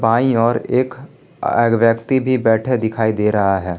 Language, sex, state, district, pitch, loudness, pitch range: Hindi, male, Jharkhand, Palamu, 115 Hz, -17 LUFS, 110-125 Hz